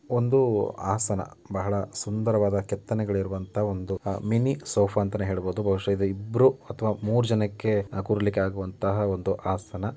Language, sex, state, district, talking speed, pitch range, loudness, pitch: Kannada, male, Karnataka, Mysore, 125 wpm, 95-110 Hz, -26 LUFS, 100 Hz